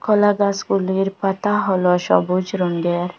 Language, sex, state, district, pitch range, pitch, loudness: Bengali, female, Assam, Hailakandi, 180-200 Hz, 195 Hz, -19 LUFS